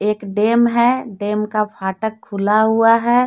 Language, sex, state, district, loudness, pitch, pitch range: Hindi, female, Jharkhand, Deoghar, -17 LUFS, 215 Hz, 210-235 Hz